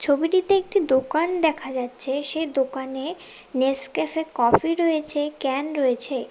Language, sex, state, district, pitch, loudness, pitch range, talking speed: Bengali, female, West Bengal, Cooch Behar, 290 Hz, -23 LUFS, 265-320 Hz, 115 wpm